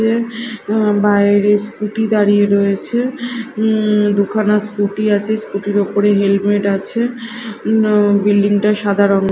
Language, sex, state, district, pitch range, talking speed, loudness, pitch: Bengali, female, Odisha, Khordha, 205-220 Hz, 115 wpm, -15 LUFS, 210 Hz